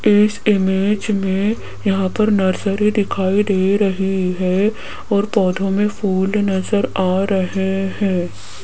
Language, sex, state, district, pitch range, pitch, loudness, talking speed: Hindi, female, Rajasthan, Jaipur, 190-205 Hz, 195 Hz, -18 LUFS, 125 wpm